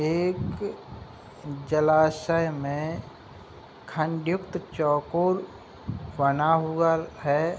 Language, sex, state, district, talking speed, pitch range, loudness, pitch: Hindi, male, Uttar Pradesh, Hamirpur, 65 wpm, 150-165 Hz, -26 LUFS, 160 Hz